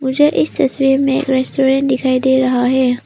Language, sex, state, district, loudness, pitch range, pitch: Hindi, female, Arunachal Pradesh, Lower Dibang Valley, -14 LUFS, 260-270 Hz, 265 Hz